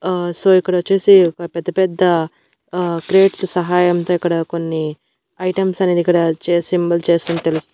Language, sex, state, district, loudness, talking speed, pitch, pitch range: Telugu, female, Andhra Pradesh, Annamaya, -16 LUFS, 140 wpm, 175 Hz, 170-185 Hz